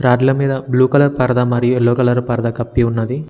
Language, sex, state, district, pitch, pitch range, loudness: Telugu, male, Telangana, Mahabubabad, 125 Hz, 120-130 Hz, -15 LUFS